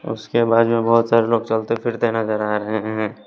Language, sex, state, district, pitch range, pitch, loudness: Hindi, male, Bihar, West Champaran, 110-115 Hz, 115 Hz, -19 LUFS